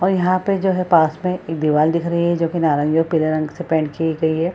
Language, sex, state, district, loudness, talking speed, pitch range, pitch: Hindi, female, Bihar, Purnia, -18 LUFS, 290 wpm, 155-180 Hz, 165 Hz